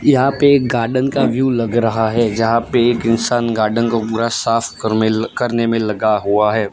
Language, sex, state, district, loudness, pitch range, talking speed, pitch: Hindi, male, Gujarat, Gandhinagar, -16 LUFS, 110-120 Hz, 215 wpm, 115 Hz